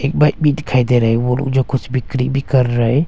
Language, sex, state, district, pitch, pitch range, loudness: Hindi, male, Arunachal Pradesh, Longding, 130 Hz, 125-140 Hz, -16 LUFS